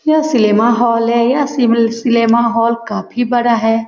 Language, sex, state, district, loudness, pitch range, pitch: Hindi, female, Bihar, Saran, -13 LUFS, 230-245 Hz, 235 Hz